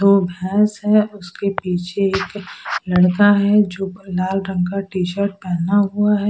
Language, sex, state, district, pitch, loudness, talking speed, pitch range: Hindi, female, Odisha, Sambalpur, 195 Hz, -18 LUFS, 160 wpm, 185-205 Hz